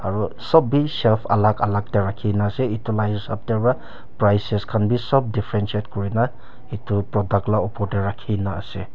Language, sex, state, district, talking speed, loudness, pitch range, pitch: Nagamese, male, Nagaland, Kohima, 175 wpm, -21 LUFS, 100-115 Hz, 105 Hz